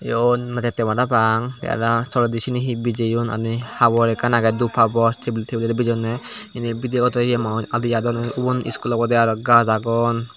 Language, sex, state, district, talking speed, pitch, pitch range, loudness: Chakma, male, Tripura, Dhalai, 175 wpm, 115 Hz, 115-120 Hz, -20 LUFS